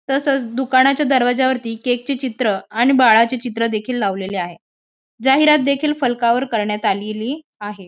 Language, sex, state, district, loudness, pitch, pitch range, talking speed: Marathi, female, Maharashtra, Aurangabad, -17 LUFS, 245 Hz, 220-270 Hz, 130 wpm